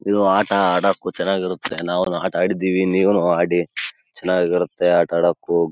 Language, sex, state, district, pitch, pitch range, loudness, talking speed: Kannada, male, Karnataka, Raichur, 90 Hz, 85-95 Hz, -19 LUFS, 75 wpm